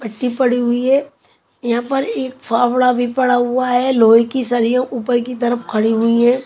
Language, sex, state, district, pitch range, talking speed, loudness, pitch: Hindi, female, Punjab, Kapurthala, 235-255 Hz, 195 wpm, -16 LUFS, 245 Hz